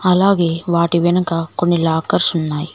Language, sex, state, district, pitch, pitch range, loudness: Telugu, female, Telangana, Mahabubabad, 170 Hz, 165-180 Hz, -16 LUFS